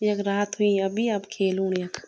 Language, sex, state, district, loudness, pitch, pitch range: Garhwali, female, Uttarakhand, Tehri Garhwal, -25 LUFS, 200 Hz, 195-210 Hz